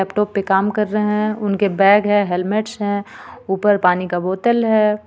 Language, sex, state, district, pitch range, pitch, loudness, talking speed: Hindi, female, Jharkhand, Ranchi, 195-210 Hz, 205 Hz, -17 LUFS, 190 wpm